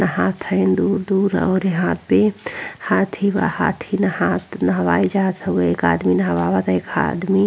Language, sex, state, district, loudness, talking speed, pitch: Bhojpuri, female, Uttar Pradesh, Ghazipur, -19 LUFS, 155 wpm, 170 Hz